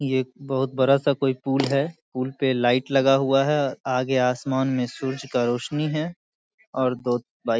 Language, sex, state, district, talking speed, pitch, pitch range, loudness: Hindi, male, Bihar, Saharsa, 195 wpm, 135 Hz, 130-140 Hz, -23 LUFS